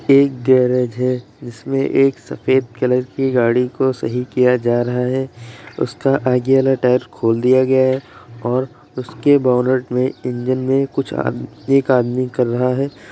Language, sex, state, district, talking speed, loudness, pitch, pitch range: Hindi, male, Uttar Pradesh, Jyotiba Phule Nagar, 160 wpm, -17 LUFS, 125 Hz, 120-135 Hz